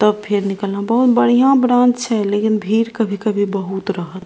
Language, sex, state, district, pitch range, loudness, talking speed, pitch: Maithili, female, Bihar, Purnia, 200-240 Hz, -16 LUFS, 185 wpm, 210 Hz